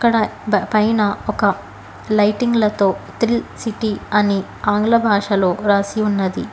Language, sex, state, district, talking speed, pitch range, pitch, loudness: Telugu, female, Telangana, Hyderabad, 110 wpm, 200-225 Hz, 210 Hz, -18 LUFS